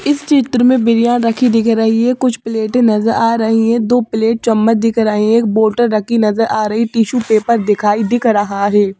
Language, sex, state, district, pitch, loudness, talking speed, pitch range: Hindi, female, Madhya Pradesh, Bhopal, 225 Hz, -13 LUFS, 215 wpm, 215-235 Hz